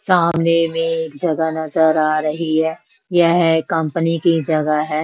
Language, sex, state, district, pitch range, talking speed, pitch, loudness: Hindi, female, Bihar, West Champaran, 160-170 Hz, 155 wpm, 165 Hz, -17 LUFS